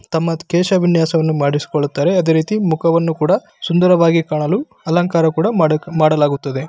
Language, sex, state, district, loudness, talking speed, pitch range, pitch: Kannada, male, Karnataka, Bellary, -15 LUFS, 125 wpm, 155-175 Hz, 165 Hz